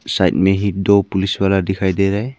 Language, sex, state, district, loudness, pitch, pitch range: Hindi, male, Arunachal Pradesh, Papum Pare, -16 LUFS, 95 Hz, 95-100 Hz